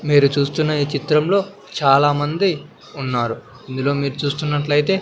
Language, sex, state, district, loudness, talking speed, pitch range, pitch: Telugu, male, Andhra Pradesh, Sri Satya Sai, -19 LUFS, 105 wpm, 140-155 Hz, 145 Hz